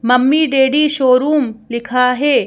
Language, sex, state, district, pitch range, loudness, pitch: Hindi, female, Madhya Pradesh, Bhopal, 250-290 Hz, -13 LUFS, 260 Hz